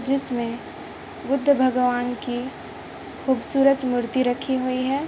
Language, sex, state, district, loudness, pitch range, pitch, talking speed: Hindi, female, Uttar Pradesh, Varanasi, -22 LUFS, 245-270 Hz, 255 Hz, 105 wpm